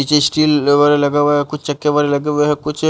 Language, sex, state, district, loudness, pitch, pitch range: Hindi, male, Haryana, Jhajjar, -15 LUFS, 145 Hz, 145-150 Hz